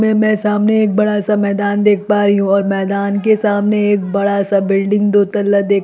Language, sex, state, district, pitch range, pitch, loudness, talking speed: Hindi, female, Bihar, Kishanganj, 200-210 Hz, 205 Hz, -14 LUFS, 195 wpm